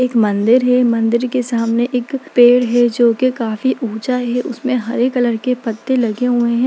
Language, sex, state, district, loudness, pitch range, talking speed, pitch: Hindi, female, Bihar, Darbhanga, -15 LUFS, 235-250 Hz, 200 wpm, 245 Hz